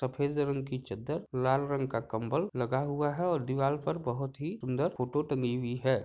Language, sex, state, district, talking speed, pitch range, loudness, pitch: Hindi, male, Jharkhand, Jamtara, 210 wpm, 125-145 Hz, -32 LUFS, 135 Hz